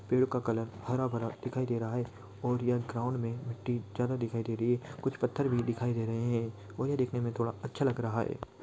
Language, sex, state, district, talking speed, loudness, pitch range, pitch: Hindi, male, Jharkhand, Jamtara, 245 wpm, -33 LUFS, 115-125 Hz, 120 Hz